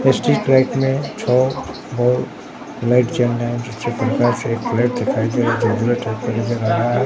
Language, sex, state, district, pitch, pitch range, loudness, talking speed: Hindi, male, Bihar, Katihar, 120 Hz, 115-130 Hz, -18 LUFS, 85 wpm